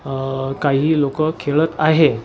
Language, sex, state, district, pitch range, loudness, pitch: Marathi, male, Maharashtra, Washim, 135-155 Hz, -18 LUFS, 145 Hz